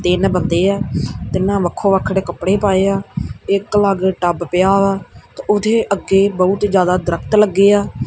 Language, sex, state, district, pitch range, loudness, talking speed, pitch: Punjabi, male, Punjab, Kapurthala, 180-200 Hz, -16 LUFS, 165 wpm, 195 Hz